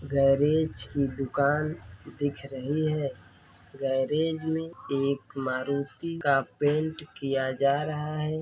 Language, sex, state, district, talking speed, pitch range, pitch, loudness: Hindi, male, Bihar, Darbhanga, 115 wpm, 135-155 Hz, 140 Hz, -28 LUFS